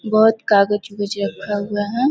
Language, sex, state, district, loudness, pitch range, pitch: Hindi, female, Bihar, Vaishali, -19 LUFS, 200-215 Hz, 205 Hz